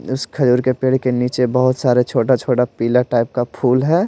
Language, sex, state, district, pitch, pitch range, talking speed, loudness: Hindi, male, Bihar, Patna, 125 Hz, 125-130 Hz, 205 wpm, -17 LUFS